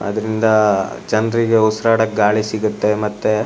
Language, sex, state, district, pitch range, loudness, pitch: Kannada, male, Karnataka, Shimoga, 105-110 Hz, -16 LUFS, 110 Hz